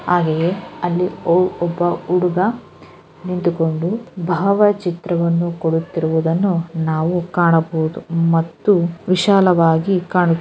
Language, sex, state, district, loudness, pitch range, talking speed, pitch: Kannada, female, Karnataka, Gulbarga, -17 LUFS, 165-180 Hz, 80 wpm, 175 Hz